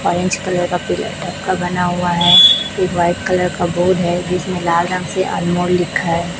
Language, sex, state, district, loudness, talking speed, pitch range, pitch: Hindi, male, Chhattisgarh, Raipur, -15 LUFS, 180 wpm, 175-185 Hz, 180 Hz